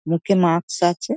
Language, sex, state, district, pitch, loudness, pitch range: Bengali, female, West Bengal, Dakshin Dinajpur, 175 Hz, -19 LUFS, 170-195 Hz